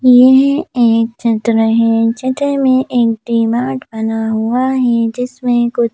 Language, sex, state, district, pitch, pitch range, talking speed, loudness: Hindi, female, Madhya Pradesh, Bhopal, 240 Hz, 230-255 Hz, 130 wpm, -13 LUFS